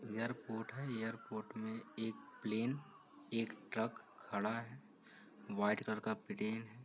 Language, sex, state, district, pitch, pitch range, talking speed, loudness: Hindi, male, Uttar Pradesh, Varanasi, 110 Hz, 110-115 Hz, 130 wpm, -42 LUFS